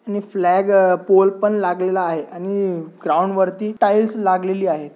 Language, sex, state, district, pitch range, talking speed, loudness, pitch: Marathi, male, Maharashtra, Dhule, 180-200 Hz, 135 wpm, -18 LUFS, 190 Hz